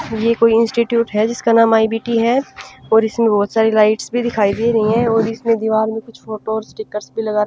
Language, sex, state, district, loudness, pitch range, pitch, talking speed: Hindi, female, Punjab, Pathankot, -16 LUFS, 220-230 Hz, 225 Hz, 235 wpm